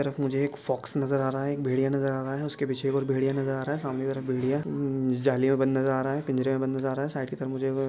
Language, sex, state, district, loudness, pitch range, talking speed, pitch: Hindi, male, Chhattisgarh, Sukma, -28 LUFS, 130-140 Hz, 335 wpm, 135 Hz